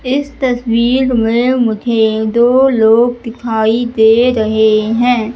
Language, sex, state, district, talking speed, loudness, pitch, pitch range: Hindi, female, Madhya Pradesh, Katni, 110 wpm, -12 LUFS, 235 Hz, 220-245 Hz